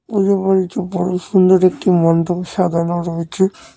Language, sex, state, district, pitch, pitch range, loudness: Bengali, male, West Bengal, Cooch Behar, 180 Hz, 175-190 Hz, -16 LUFS